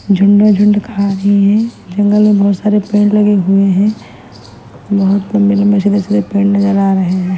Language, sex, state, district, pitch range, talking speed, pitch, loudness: Hindi, female, Punjab, Fazilka, 195-205 Hz, 185 wpm, 200 Hz, -11 LUFS